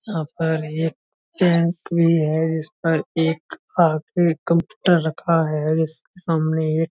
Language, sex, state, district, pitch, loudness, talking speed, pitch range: Hindi, male, Uttar Pradesh, Budaun, 160 Hz, -21 LUFS, 130 wpm, 160-170 Hz